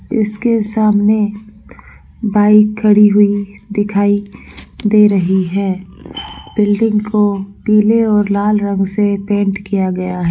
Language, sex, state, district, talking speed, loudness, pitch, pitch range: Hindi, female, Rajasthan, Churu, 115 wpm, -14 LUFS, 205 Hz, 200-210 Hz